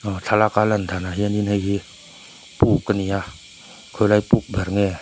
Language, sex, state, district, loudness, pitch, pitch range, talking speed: Mizo, male, Mizoram, Aizawl, -21 LUFS, 100 Hz, 95-105 Hz, 165 wpm